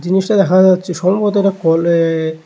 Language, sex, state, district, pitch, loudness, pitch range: Bengali, male, Tripura, West Tripura, 180 Hz, -13 LUFS, 165-195 Hz